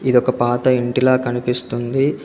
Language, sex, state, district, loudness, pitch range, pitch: Telugu, male, Telangana, Komaram Bheem, -18 LUFS, 120-130 Hz, 125 Hz